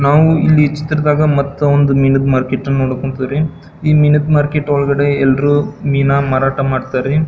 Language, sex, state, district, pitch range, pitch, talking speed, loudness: Kannada, male, Karnataka, Belgaum, 135-150 Hz, 140 Hz, 140 wpm, -13 LUFS